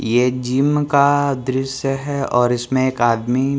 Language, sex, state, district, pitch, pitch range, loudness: Hindi, male, Bihar, Patna, 130 Hz, 125-140 Hz, -18 LUFS